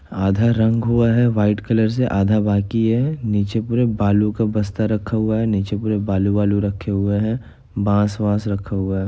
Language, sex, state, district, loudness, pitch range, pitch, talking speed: Hindi, male, Bihar, Gopalganj, -19 LUFS, 100-115 Hz, 105 Hz, 185 wpm